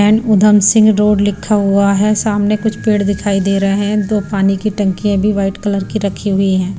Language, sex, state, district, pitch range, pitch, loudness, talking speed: Hindi, female, Punjab, Pathankot, 195-210 Hz, 205 Hz, -13 LUFS, 220 wpm